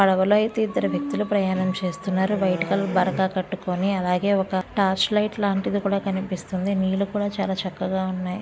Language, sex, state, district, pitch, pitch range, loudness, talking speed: Telugu, female, Andhra Pradesh, Visakhapatnam, 190 Hz, 185-200 Hz, -23 LUFS, 155 wpm